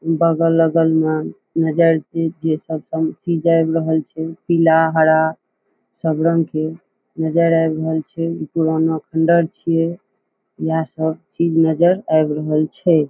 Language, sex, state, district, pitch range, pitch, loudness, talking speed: Maithili, female, Bihar, Saharsa, 160-165 Hz, 160 Hz, -18 LUFS, 130 wpm